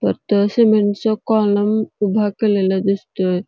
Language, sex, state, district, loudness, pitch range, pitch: Marathi, female, Karnataka, Belgaum, -17 LUFS, 195-215 Hz, 205 Hz